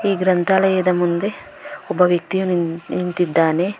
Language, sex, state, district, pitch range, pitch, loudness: Kannada, female, Karnataka, Bangalore, 175-190 Hz, 180 Hz, -18 LUFS